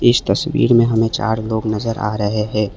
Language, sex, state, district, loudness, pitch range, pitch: Hindi, male, Assam, Kamrup Metropolitan, -17 LUFS, 105-115 Hz, 110 Hz